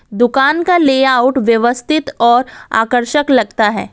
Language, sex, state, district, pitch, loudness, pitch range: Hindi, female, Assam, Kamrup Metropolitan, 250 Hz, -13 LUFS, 235-280 Hz